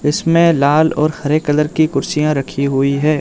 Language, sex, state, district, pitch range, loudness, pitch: Hindi, male, Arunachal Pradesh, Lower Dibang Valley, 140-155 Hz, -15 LUFS, 150 Hz